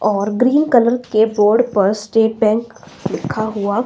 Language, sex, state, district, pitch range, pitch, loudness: Hindi, female, Himachal Pradesh, Shimla, 210-240 Hz, 220 Hz, -16 LUFS